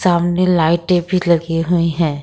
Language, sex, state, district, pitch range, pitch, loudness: Hindi, female, Jharkhand, Ranchi, 165-180 Hz, 170 Hz, -16 LUFS